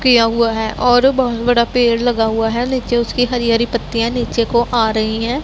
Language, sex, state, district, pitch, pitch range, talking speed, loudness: Hindi, female, Punjab, Pathankot, 235 Hz, 230-245 Hz, 220 wpm, -15 LUFS